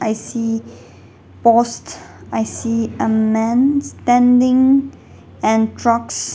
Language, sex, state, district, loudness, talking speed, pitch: English, female, Nagaland, Dimapur, -16 LUFS, 95 wpm, 225 Hz